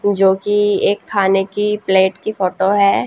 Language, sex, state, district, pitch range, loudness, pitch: Hindi, female, Haryana, Jhajjar, 190-205 Hz, -16 LUFS, 200 Hz